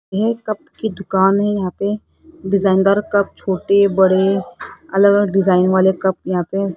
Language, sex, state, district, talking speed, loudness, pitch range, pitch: Hindi, female, Rajasthan, Jaipur, 170 wpm, -16 LUFS, 190-205 Hz, 195 Hz